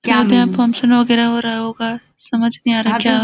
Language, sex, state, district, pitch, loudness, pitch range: Hindi, female, Chhattisgarh, Balrampur, 235 Hz, -15 LUFS, 230-240 Hz